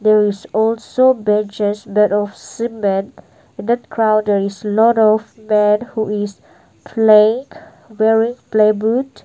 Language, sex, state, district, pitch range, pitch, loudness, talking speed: English, female, Nagaland, Dimapur, 210-225 Hz, 215 Hz, -16 LUFS, 110 wpm